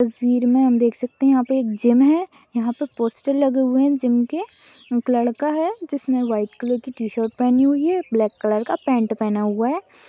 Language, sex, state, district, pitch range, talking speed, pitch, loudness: Hindi, female, Chhattisgarh, Raigarh, 235-280 Hz, 220 wpm, 250 Hz, -20 LUFS